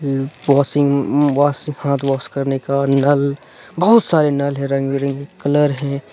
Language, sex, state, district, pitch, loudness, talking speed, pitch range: Hindi, male, Jharkhand, Deoghar, 140 Hz, -17 LUFS, 165 wpm, 140-145 Hz